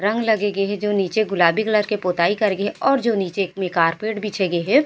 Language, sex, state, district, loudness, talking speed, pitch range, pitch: Chhattisgarhi, female, Chhattisgarh, Raigarh, -20 LUFS, 260 wpm, 190-215 Hz, 205 Hz